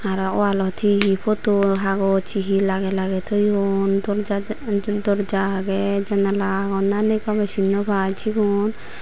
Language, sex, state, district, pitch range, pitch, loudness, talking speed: Chakma, female, Tripura, Unakoti, 195-205 Hz, 200 Hz, -21 LUFS, 145 wpm